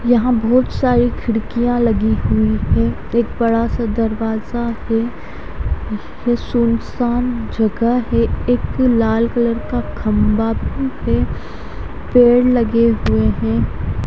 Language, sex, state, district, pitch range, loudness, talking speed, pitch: Hindi, female, Haryana, Charkhi Dadri, 215-240 Hz, -17 LUFS, 105 wpm, 230 Hz